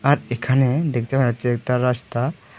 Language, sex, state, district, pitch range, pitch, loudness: Bengali, male, Tripura, Unakoti, 120-135 Hz, 125 Hz, -21 LUFS